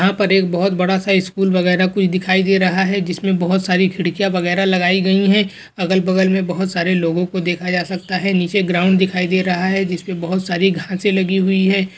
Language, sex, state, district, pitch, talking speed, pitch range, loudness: Hindi, male, Bihar, Lakhisarai, 185 Hz, 230 wpm, 180-190 Hz, -16 LUFS